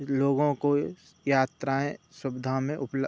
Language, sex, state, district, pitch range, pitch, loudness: Hindi, male, Uttar Pradesh, Budaun, 135-145 Hz, 140 Hz, -28 LUFS